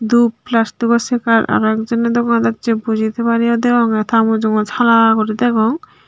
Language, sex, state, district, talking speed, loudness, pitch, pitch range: Chakma, female, Tripura, Unakoti, 170 wpm, -15 LUFS, 230 Hz, 220-235 Hz